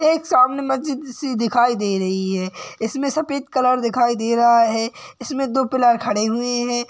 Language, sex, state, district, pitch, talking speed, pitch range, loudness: Hindi, male, Maharashtra, Solapur, 245 Hz, 200 wpm, 230-270 Hz, -19 LUFS